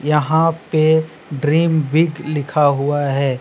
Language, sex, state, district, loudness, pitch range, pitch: Hindi, male, Jharkhand, Deoghar, -17 LUFS, 145-160 Hz, 155 Hz